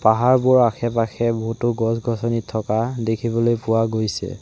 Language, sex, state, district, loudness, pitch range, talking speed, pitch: Assamese, male, Assam, Sonitpur, -20 LUFS, 110-120 Hz, 110 wpm, 115 Hz